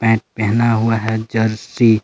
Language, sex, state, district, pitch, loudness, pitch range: Hindi, male, Jharkhand, Palamu, 110 Hz, -17 LUFS, 110-115 Hz